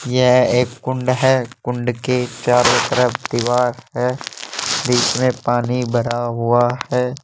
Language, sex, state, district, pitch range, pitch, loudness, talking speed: Hindi, male, Rajasthan, Jaipur, 120-125 Hz, 125 Hz, -18 LUFS, 135 wpm